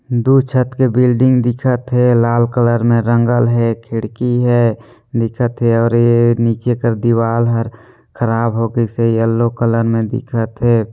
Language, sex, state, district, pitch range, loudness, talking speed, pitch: Hindi, male, Chhattisgarh, Sarguja, 115-120 Hz, -14 LUFS, 165 wpm, 120 Hz